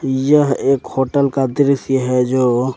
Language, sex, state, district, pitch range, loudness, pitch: Hindi, male, Jharkhand, Ranchi, 130-140 Hz, -16 LUFS, 135 Hz